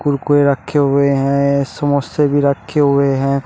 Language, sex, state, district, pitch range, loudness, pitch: Hindi, male, Uttar Pradesh, Shamli, 140-145 Hz, -15 LUFS, 140 Hz